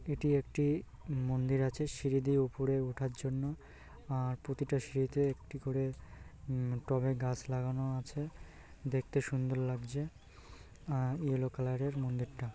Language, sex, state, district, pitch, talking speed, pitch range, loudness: Bengali, male, West Bengal, North 24 Parganas, 135 Hz, 130 wpm, 130-140 Hz, -36 LUFS